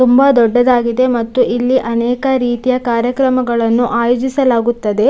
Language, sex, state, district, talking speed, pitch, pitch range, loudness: Kannada, female, Karnataka, Dakshina Kannada, 80 wpm, 245 Hz, 235-255 Hz, -13 LUFS